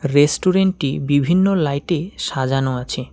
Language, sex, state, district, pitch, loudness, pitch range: Bengali, male, West Bengal, Alipurduar, 145 Hz, -18 LUFS, 135-180 Hz